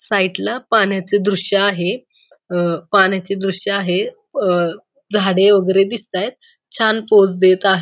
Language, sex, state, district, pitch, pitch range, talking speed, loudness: Marathi, female, Maharashtra, Pune, 200 Hz, 190-215 Hz, 125 wpm, -16 LUFS